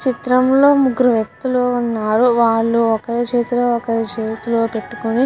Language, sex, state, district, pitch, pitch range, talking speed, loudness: Telugu, female, Andhra Pradesh, Guntur, 235 Hz, 225-250 Hz, 135 wpm, -16 LUFS